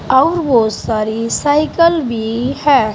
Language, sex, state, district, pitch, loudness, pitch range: Hindi, female, Uttar Pradesh, Saharanpur, 245 Hz, -14 LUFS, 225-300 Hz